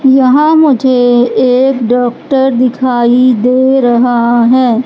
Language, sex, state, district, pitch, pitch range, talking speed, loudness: Hindi, female, Madhya Pradesh, Katni, 250 Hz, 245-265 Hz, 100 wpm, -9 LUFS